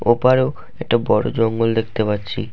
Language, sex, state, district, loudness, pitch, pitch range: Bengali, male, West Bengal, Malda, -18 LUFS, 115 Hz, 110-120 Hz